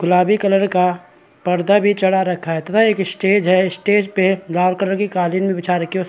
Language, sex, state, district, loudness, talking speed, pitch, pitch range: Hindi, male, Bihar, Supaul, -17 LUFS, 235 wpm, 185 Hz, 180-195 Hz